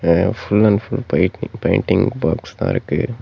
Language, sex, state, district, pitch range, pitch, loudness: Tamil, male, Tamil Nadu, Namakkal, 90-120 Hz, 105 Hz, -18 LUFS